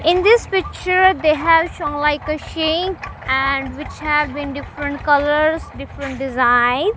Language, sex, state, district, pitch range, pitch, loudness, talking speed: English, female, Punjab, Kapurthala, 285-330 Hz, 300 Hz, -17 LUFS, 145 wpm